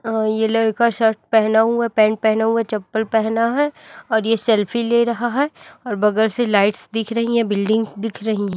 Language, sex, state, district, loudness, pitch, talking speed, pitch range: Hindi, female, Chhattisgarh, Raipur, -18 LUFS, 225 Hz, 215 wpm, 220-235 Hz